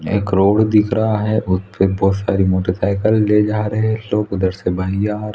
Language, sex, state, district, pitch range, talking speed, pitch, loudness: Hindi, male, Chhattisgarh, Raigarh, 95-105 Hz, 180 wpm, 100 Hz, -17 LUFS